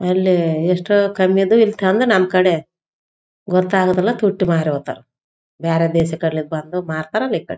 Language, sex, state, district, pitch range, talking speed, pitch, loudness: Kannada, female, Karnataka, Raichur, 165-190 Hz, 140 wpm, 185 Hz, -17 LUFS